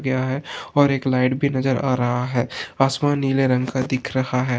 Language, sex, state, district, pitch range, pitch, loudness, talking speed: Hindi, male, Maharashtra, Pune, 125-135 Hz, 130 Hz, -21 LUFS, 210 wpm